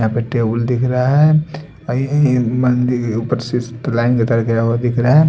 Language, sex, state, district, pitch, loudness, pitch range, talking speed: Hindi, male, Odisha, Sambalpur, 125 Hz, -16 LUFS, 115-135 Hz, 240 wpm